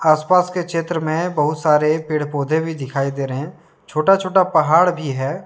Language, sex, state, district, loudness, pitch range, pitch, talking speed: Hindi, male, Jharkhand, Deoghar, -18 LUFS, 150-175 Hz, 155 Hz, 185 wpm